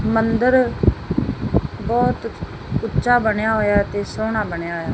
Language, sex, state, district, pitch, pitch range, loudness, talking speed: Punjabi, female, Punjab, Fazilka, 215 Hz, 205-225 Hz, -20 LUFS, 110 wpm